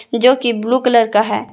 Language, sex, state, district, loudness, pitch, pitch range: Hindi, female, Jharkhand, Ranchi, -14 LUFS, 235 Hz, 220-250 Hz